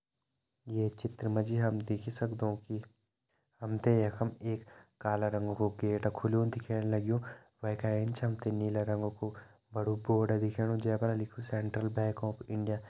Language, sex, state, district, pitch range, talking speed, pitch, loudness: Hindi, male, Uttarakhand, Tehri Garhwal, 105-115 Hz, 180 wpm, 110 Hz, -34 LUFS